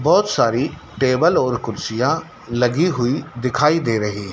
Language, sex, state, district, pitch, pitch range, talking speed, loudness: Hindi, male, Madhya Pradesh, Dhar, 125 Hz, 115-150 Hz, 140 wpm, -19 LUFS